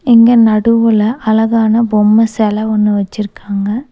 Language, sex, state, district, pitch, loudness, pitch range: Tamil, female, Tamil Nadu, Nilgiris, 220 Hz, -11 LUFS, 210-230 Hz